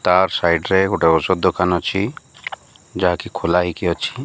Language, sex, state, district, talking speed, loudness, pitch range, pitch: Odia, male, Odisha, Malkangiri, 140 wpm, -18 LUFS, 85-95 Hz, 90 Hz